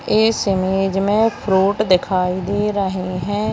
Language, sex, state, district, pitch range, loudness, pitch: Hindi, female, Maharashtra, Chandrapur, 185-210 Hz, -18 LUFS, 195 Hz